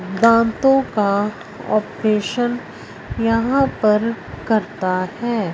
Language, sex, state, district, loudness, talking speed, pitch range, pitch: Hindi, female, Punjab, Fazilka, -18 LUFS, 75 wpm, 210-235 Hz, 220 Hz